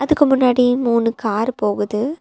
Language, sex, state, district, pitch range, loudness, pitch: Tamil, female, Tamil Nadu, Nilgiris, 215-265 Hz, -17 LUFS, 245 Hz